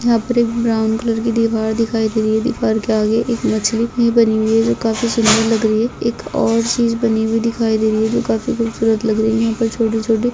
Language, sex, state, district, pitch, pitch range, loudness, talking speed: Hindi, female, Bihar, Kishanganj, 225 Hz, 220-230 Hz, -16 LUFS, 260 wpm